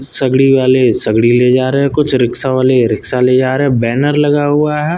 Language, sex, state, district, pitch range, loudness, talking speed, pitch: Hindi, male, Uttar Pradesh, Lucknow, 125-145 Hz, -12 LUFS, 230 wpm, 130 Hz